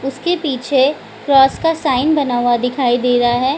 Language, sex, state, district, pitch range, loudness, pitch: Hindi, female, Bihar, Gaya, 245-290 Hz, -15 LUFS, 265 Hz